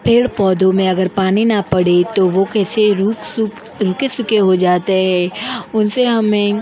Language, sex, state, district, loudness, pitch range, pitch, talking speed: Hindi, female, Uttar Pradesh, Jyotiba Phule Nagar, -15 LUFS, 185-220 Hz, 205 Hz, 180 wpm